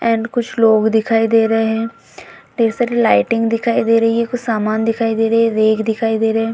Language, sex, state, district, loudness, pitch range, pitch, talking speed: Hindi, female, Bihar, Vaishali, -15 LUFS, 225-230 Hz, 225 Hz, 230 wpm